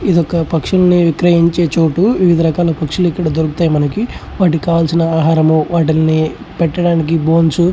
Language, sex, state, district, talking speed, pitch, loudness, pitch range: Telugu, male, Andhra Pradesh, Chittoor, 140 wpm, 165 Hz, -13 LUFS, 160-175 Hz